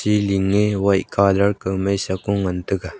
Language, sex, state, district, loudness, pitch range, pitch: Wancho, male, Arunachal Pradesh, Longding, -19 LUFS, 95-100 Hz, 100 Hz